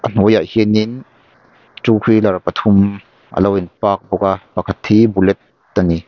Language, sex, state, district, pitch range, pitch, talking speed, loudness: Mizo, male, Mizoram, Aizawl, 95-110 Hz, 100 Hz, 160 wpm, -15 LUFS